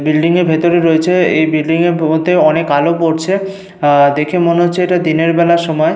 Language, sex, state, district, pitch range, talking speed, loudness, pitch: Bengali, male, Jharkhand, Sahebganj, 160-175 Hz, 190 wpm, -12 LUFS, 165 Hz